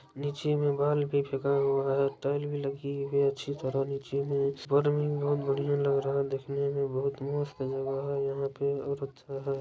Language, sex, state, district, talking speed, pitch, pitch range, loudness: Maithili, male, Bihar, Darbhanga, 150 wpm, 140 Hz, 135-140 Hz, -30 LUFS